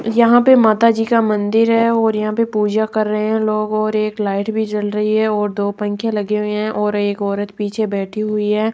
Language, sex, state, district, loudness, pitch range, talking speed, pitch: Hindi, female, Rajasthan, Jaipur, -17 LUFS, 210-220 Hz, 240 wpm, 215 Hz